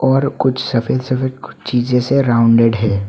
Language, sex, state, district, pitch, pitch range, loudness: Hindi, male, Assam, Hailakandi, 125 Hz, 115-130 Hz, -15 LUFS